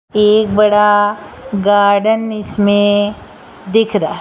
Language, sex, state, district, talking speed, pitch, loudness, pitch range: Hindi, female, Rajasthan, Jaipur, 85 wpm, 210 Hz, -13 LUFS, 205-210 Hz